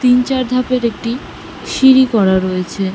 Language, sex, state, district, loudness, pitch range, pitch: Bengali, female, West Bengal, Malda, -14 LUFS, 195-255 Hz, 245 Hz